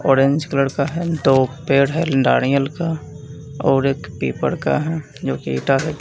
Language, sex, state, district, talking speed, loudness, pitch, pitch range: Hindi, male, Bihar, Katihar, 170 wpm, -19 LUFS, 140 Hz, 135-150 Hz